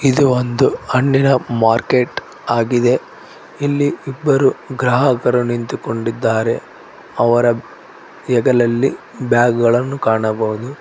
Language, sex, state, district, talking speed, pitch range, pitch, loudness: Kannada, male, Karnataka, Koppal, 85 wpm, 115-135 Hz, 125 Hz, -16 LUFS